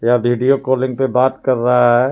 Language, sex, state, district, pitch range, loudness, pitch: Hindi, male, Jharkhand, Palamu, 120-130 Hz, -15 LUFS, 125 Hz